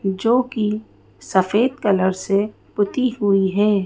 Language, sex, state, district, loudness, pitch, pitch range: Hindi, female, Madhya Pradesh, Bhopal, -20 LUFS, 205 Hz, 195-230 Hz